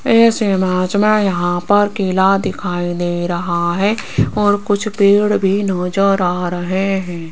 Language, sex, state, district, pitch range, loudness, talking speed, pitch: Hindi, female, Rajasthan, Jaipur, 175-205 Hz, -16 LUFS, 145 wpm, 195 Hz